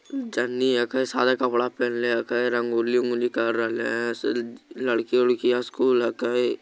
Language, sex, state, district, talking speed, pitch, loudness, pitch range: Magahi, male, Bihar, Jamui, 120 wpm, 120 Hz, -24 LUFS, 120-125 Hz